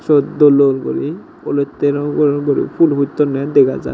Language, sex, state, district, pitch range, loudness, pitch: Chakma, male, Tripura, Dhalai, 140-145 Hz, -15 LUFS, 145 Hz